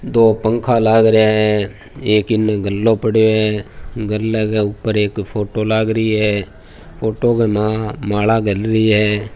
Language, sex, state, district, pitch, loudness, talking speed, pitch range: Marwari, male, Rajasthan, Churu, 110 Hz, -16 LUFS, 155 wpm, 105-110 Hz